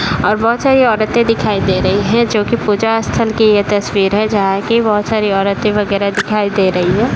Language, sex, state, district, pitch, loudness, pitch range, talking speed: Hindi, male, Bihar, Jahanabad, 210 Hz, -13 LUFS, 200-225 Hz, 220 wpm